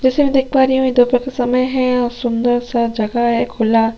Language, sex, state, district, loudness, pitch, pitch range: Hindi, female, Chhattisgarh, Sukma, -16 LUFS, 245 Hz, 235-260 Hz